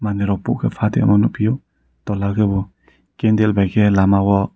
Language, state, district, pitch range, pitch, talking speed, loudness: Kokborok, Tripura, Dhalai, 100-105 Hz, 100 Hz, 155 wpm, -17 LUFS